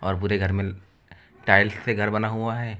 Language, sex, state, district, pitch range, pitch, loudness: Hindi, male, Uttar Pradesh, Lucknow, 95-110 Hz, 105 Hz, -23 LUFS